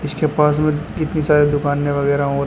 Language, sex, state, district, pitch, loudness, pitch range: Hindi, male, Uttar Pradesh, Shamli, 150 Hz, -17 LUFS, 145-155 Hz